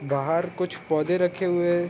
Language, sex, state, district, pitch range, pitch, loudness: Hindi, male, Jharkhand, Sahebganj, 160-180 Hz, 175 Hz, -25 LUFS